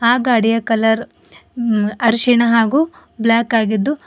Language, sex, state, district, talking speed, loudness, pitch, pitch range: Kannada, female, Karnataka, Bidar, 105 wpm, -15 LUFS, 230 Hz, 225-240 Hz